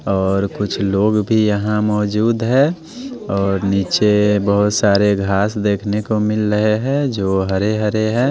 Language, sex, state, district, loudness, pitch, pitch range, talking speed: Hindi, male, Punjab, Pathankot, -17 LUFS, 105 Hz, 100-110 Hz, 145 wpm